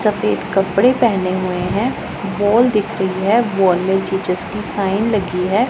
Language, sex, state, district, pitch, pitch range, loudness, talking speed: Hindi, female, Punjab, Pathankot, 200 Hz, 185-215 Hz, -17 LUFS, 170 wpm